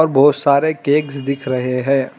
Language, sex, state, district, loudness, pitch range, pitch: Hindi, male, Telangana, Hyderabad, -16 LUFS, 135-145 Hz, 140 Hz